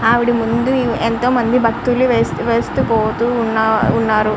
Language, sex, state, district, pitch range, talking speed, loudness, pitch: Telugu, male, Andhra Pradesh, Srikakulam, 225-240 Hz, 135 wpm, -15 LUFS, 230 Hz